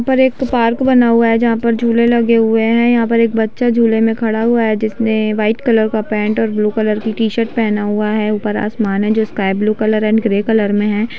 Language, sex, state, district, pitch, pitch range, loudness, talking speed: Hindi, female, Chhattisgarh, Bilaspur, 225 Hz, 215-230 Hz, -14 LUFS, 250 wpm